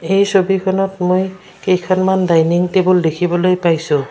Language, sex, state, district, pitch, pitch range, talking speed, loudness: Assamese, female, Assam, Kamrup Metropolitan, 185 Hz, 175-190 Hz, 115 wpm, -15 LUFS